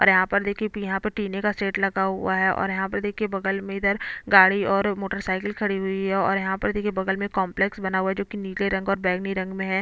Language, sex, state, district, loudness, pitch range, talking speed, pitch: Hindi, female, Chhattisgarh, Bastar, -24 LUFS, 190-200 Hz, 275 wpm, 195 Hz